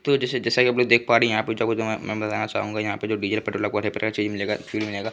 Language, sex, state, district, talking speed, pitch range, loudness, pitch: Hindi, male, Bihar, Begusarai, 235 wpm, 105-115 Hz, -23 LUFS, 110 Hz